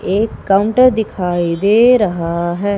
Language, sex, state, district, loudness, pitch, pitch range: Hindi, female, Madhya Pradesh, Umaria, -14 LUFS, 200 Hz, 175-220 Hz